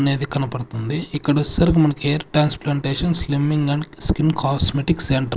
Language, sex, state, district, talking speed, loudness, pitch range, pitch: Telugu, male, Andhra Pradesh, Sri Satya Sai, 145 wpm, -18 LUFS, 140-150 Hz, 145 Hz